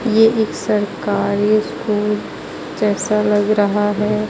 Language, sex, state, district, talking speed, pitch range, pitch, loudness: Hindi, female, Jharkhand, Ranchi, 110 wpm, 205-215 Hz, 210 Hz, -17 LUFS